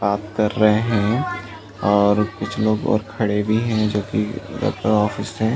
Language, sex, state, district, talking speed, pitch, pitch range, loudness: Hindi, male, Uttar Pradesh, Jalaun, 185 wpm, 105 Hz, 105-110 Hz, -20 LUFS